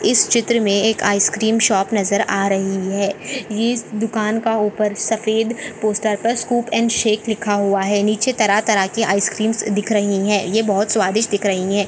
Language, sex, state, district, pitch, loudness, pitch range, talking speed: Hindi, female, Maharashtra, Nagpur, 215 Hz, -18 LUFS, 200-225 Hz, 185 wpm